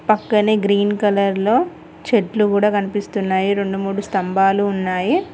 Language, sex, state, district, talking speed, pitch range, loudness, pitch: Telugu, female, Telangana, Mahabubabad, 125 wpm, 195-210 Hz, -18 LUFS, 205 Hz